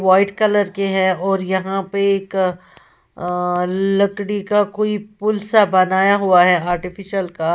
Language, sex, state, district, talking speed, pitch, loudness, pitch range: Hindi, female, Uttar Pradesh, Lalitpur, 150 wpm, 195 Hz, -17 LUFS, 185-200 Hz